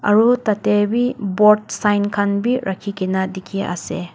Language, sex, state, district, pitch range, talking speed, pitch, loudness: Nagamese, female, Nagaland, Dimapur, 190-215 Hz, 145 wpm, 205 Hz, -18 LUFS